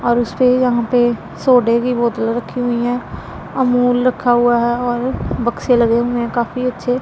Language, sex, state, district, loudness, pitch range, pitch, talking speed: Hindi, female, Punjab, Pathankot, -16 LUFS, 235-250 Hz, 240 Hz, 190 wpm